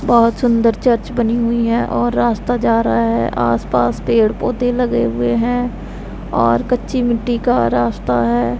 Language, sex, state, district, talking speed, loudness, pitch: Hindi, female, Punjab, Pathankot, 160 wpm, -16 LUFS, 230 Hz